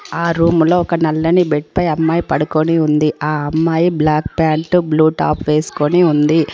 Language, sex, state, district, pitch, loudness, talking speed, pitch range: Telugu, female, Telangana, Komaram Bheem, 160 Hz, -15 LUFS, 155 wpm, 155-170 Hz